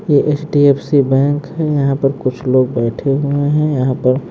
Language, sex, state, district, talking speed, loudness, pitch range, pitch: Hindi, male, Haryana, Jhajjar, 220 wpm, -15 LUFS, 130-145 Hz, 140 Hz